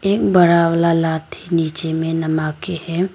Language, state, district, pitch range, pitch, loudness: Hindi, Arunachal Pradesh, Lower Dibang Valley, 160-175 Hz, 165 Hz, -17 LUFS